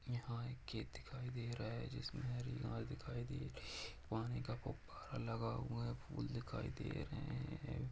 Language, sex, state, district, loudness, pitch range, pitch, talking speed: Hindi, male, Jharkhand, Jamtara, -47 LUFS, 115-125 Hz, 120 Hz, 205 wpm